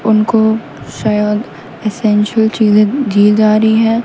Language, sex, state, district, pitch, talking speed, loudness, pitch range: Hindi, female, Haryana, Rohtak, 215 Hz, 120 wpm, -12 LUFS, 210-225 Hz